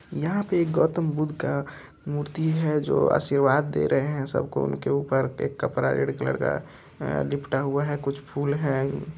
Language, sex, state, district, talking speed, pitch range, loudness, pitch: Hindi, male, Andhra Pradesh, Chittoor, 175 wpm, 135-155 Hz, -25 LUFS, 145 Hz